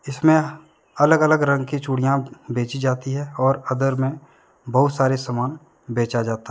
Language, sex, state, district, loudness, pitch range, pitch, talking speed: Hindi, male, Jharkhand, Deoghar, -21 LUFS, 130-145 Hz, 135 Hz, 165 wpm